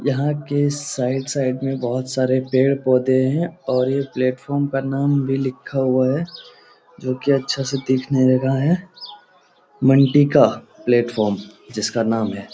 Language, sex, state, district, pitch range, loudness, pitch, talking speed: Hindi, male, Bihar, Lakhisarai, 130-140 Hz, -19 LUFS, 135 Hz, 160 wpm